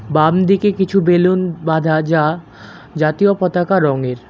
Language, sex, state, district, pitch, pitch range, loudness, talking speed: Bengali, male, West Bengal, Alipurduar, 165 Hz, 155-185 Hz, -15 LUFS, 110 wpm